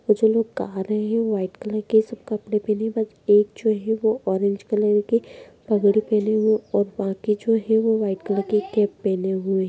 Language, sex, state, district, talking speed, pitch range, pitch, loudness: Hindi, female, Bihar, Muzaffarpur, 225 wpm, 205-220 Hz, 215 Hz, -22 LUFS